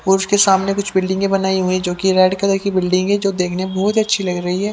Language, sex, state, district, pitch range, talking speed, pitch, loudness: Hindi, male, Haryana, Jhajjar, 185-195 Hz, 290 wpm, 190 Hz, -16 LUFS